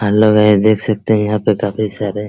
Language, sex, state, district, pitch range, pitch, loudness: Hindi, male, Bihar, Araria, 105-110 Hz, 105 Hz, -14 LUFS